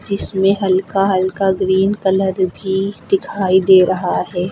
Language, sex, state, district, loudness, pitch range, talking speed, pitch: Hindi, female, Uttar Pradesh, Lucknow, -16 LUFS, 185-195 Hz, 130 wpm, 190 Hz